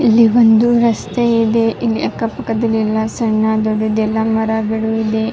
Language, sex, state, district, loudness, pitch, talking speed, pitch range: Kannada, female, Karnataka, Raichur, -15 LUFS, 225 Hz, 135 wpm, 220-230 Hz